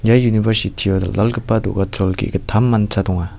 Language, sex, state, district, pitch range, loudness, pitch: Garo, male, Meghalaya, West Garo Hills, 95-110 Hz, -17 LUFS, 105 Hz